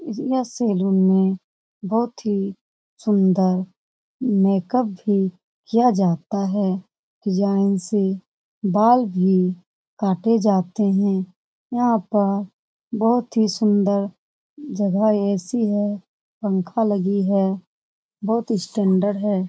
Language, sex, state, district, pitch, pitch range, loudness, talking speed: Hindi, female, Bihar, Lakhisarai, 200 Hz, 190-220 Hz, -21 LUFS, 100 wpm